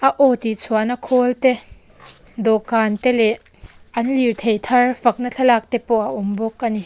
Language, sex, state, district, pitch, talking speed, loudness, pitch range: Mizo, female, Mizoram, Aizawl, 235 Hz, 185 wpm, -18 LUFS, 220-250 Hz